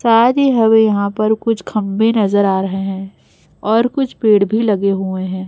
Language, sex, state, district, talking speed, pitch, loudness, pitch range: Hindi, female, Chhattisgarh, Raipur, 185 wpm, 215 Hz, -15 LUFS, 195-225 Hz